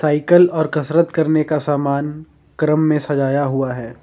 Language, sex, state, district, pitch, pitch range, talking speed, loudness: Hindi, male, Jharkhand, Ranchi, 150 Hz, 140-155 Hz, 165 wpm, -17 LUFS